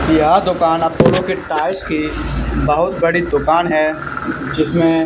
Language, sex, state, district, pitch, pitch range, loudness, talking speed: Hindi, male, Haryana, Charkhi Dadri, 160 Hz, 155-170 Hz, -16 LUFS, 130 wpm